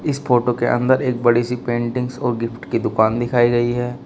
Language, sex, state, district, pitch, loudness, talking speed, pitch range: Hindi, male, Uttar Pradesh, Shamli, 120 Hz, -19 LUFS, 220 wpm, 120-125 Hz